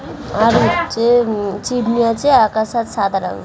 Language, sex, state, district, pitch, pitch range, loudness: Bengali, female, West Bengal, Dakshin Dinajpur, 230 Hz, 210-240 Hz, -16 LUFS